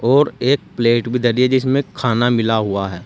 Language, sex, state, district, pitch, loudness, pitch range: Hindi, male, Uttar Pradesh, Saharanpur, 120 Hz, -17 LUFS, 115-130 Hz